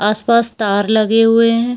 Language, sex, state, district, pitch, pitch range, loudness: Hindi, female, Bihar, Purnia, 225 Hz, 215-230 Hz, -13 LUFS